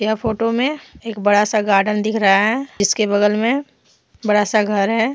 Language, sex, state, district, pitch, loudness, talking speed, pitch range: Hindi, female, Jharkhand, Deoghar, 215 Hz, -17 LUFS, 200 wpm, 205-230 Hz